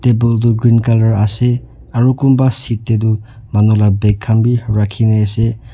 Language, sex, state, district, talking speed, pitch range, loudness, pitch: Nagamese, male, Nagaland, Dimapur, 190 wpm, 110-120 Hz, -13 LUFS, 115 Hz